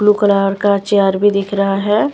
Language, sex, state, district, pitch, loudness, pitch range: Hindi, female, Punjab, Kapurthala, 200 Hz, -14 LUFS, 195-205 Hz